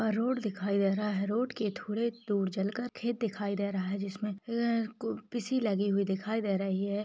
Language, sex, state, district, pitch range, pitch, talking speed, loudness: Hindi, female, Bihar, Begusarai, 200-230 Hz, 210 Hz, 195 wpm, -32 LUFS